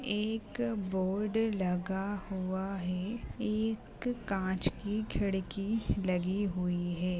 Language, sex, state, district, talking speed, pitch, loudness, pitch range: Hindi, female, Uttar Pradesh, Ghazipur, 100 wpm, 195 Hz, -34 LUFS, 185-215 Hz